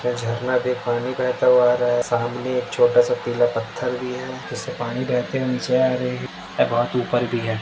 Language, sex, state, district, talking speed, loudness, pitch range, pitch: Hindi, male, Maharashtra, Dhule, 230 wpm, -21 LUFS, 120-125 Hz, 125 Hz